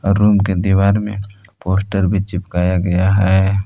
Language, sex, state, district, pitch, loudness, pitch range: Hindi, male, Jharkhand, Palamu, 95 Hz, -16 LUFS, 95-100 Hz